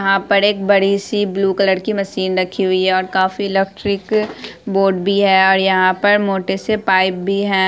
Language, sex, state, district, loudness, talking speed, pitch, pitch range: Hindi, female, Bihar, Araria, -16 LUFS, 205 wpm, 195 Hz, 190-200 Hz